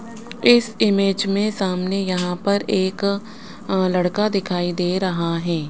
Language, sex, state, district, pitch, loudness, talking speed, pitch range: Hindi, male, Rajasthan, Jaipur, 195 Hz, -20 LUFS, 125 wpm, 180-210 Hz